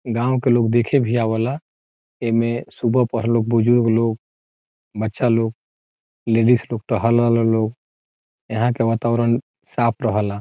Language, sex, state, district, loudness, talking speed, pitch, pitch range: Bhojpuri, male, Bihar, Saran, -19 LUFS, 125 wpm, 115 Hz, 110-120 Hz